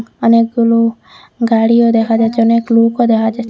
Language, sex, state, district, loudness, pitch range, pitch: Bengali, female, Assam, Hailakandi, -12 LUFS, 225-230 Hz, 230 Hz